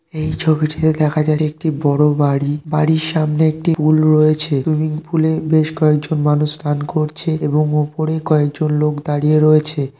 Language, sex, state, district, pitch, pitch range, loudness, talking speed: Bengali, male, West Bengal, North 24 Parganas, 155 Hz, 150-155 Hz, -16 LUFS, 150 wpm